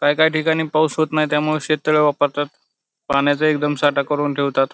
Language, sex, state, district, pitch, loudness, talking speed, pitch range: Marathi, male, Maharashtra, Pune, 150 Hz, -18 LUFS, 190 wpm, 145-155 Hz